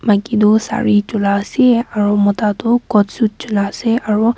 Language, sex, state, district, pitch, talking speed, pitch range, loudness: Nagamese, female, Nagaland, Kohima, 215 Hz, 150 wpm, 205-230 Hz, -15 LUFS